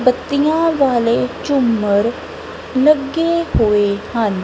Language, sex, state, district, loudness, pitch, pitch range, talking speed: Punjabi, female, Punjab, Kapurthala, -16 LUFS, 255 Hz, 225-310 Hz, 80 wpm